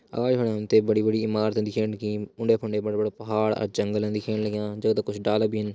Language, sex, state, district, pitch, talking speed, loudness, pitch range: Hindi, male, Uttarakhand, Uttarkashi, 110 Hz, 230 wpm, -25 LUFS, 105-110 Hz